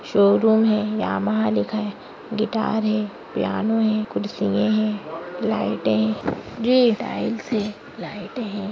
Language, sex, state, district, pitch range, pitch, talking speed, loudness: Hindi, female, Maharashtra, Nagpur, 170-220 Hz, 210 Hz, 125 wpm, -22 LUFS